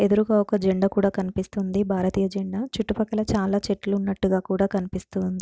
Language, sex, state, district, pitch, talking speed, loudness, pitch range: Telugu, female, Andhra Pradesh, Chittoor, 195 Hz, 155 wpm, -24 LUFS, 190-205 Hz